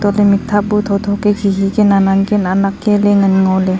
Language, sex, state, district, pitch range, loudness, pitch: Wancho, female, Arunachal Pradesh, Longding, 195-205 Hz, -13 LUFS, 200 Hz